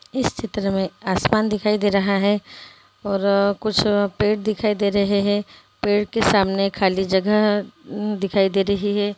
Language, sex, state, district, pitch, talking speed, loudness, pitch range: Hindi, female, Bihar, Gopalganj, 205 Hz, 170 wpm, -20 LUFS, 200-210 Hz